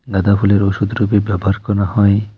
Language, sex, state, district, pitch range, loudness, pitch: Bengali, male, West Bengal, Alipurduar, 100-105 Hz, -15 LUFS, 100 Hz